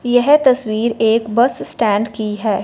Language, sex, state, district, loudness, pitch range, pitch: Hindi, female, Punjab, Fazilka, -15 LUFS, 215-245 Hz, 225 Hz